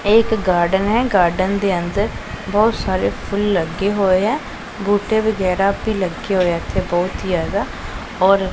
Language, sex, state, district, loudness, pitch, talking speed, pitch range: Punjabi, male, Punjab, Pathankot, -18 LUFS, 195 Hz, 170 wpm, 185-210 Hz